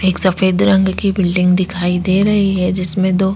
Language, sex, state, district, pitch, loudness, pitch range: Hindi, female, Chhattisgarh, Sukma, 185 Hz, -15 LUFS, 180-190 Hz